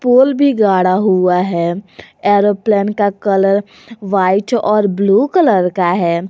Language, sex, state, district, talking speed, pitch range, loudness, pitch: Hindi, female, Jharkhand, Garhwa, 135 wpm, 185-210 Hz, -13 LUFS, 200 Hz